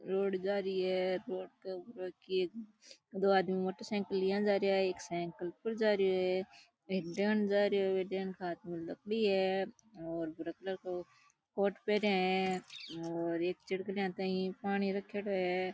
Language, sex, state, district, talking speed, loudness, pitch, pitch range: Rajasthani, female, Rajasthan, Churu, 175 wpm, -35 LUFS, 190 Hz, 185-200 Hz